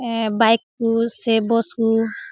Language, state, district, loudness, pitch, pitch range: Surjapuri, Bihar, Kishanganj, -19 LUFS, 230 Hz, 225-230 Hz